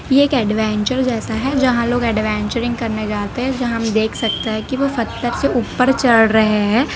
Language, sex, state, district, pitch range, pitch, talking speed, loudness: Hindi, female, Gujarat, Valsad, 220-255 Hz, 235 Hz, 205 wpm, -17 LUFS